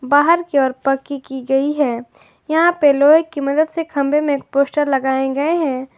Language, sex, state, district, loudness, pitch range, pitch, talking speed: Hindi, female, Jharkhand, Ranchi, -17 LUFS, 270-300 Hz, 285 Hz, 190 wpm